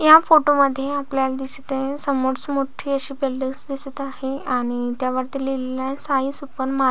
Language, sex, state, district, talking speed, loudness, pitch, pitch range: Marathi, female, Maharashtra, Solapur, 190 wpm, -21 LUFS, 270 Hz, 265-280 Hz